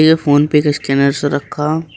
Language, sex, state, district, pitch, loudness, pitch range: Hindi, male, Uttar Pradesh, Shamli, 150 Hz, -14 LUFS, 145-155 Hz